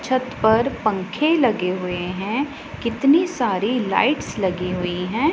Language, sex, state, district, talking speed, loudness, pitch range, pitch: Hindi, female, Punjab, Pathankot, 135 wpm, -21 LUFS, 185-270 Hz, 220 Hz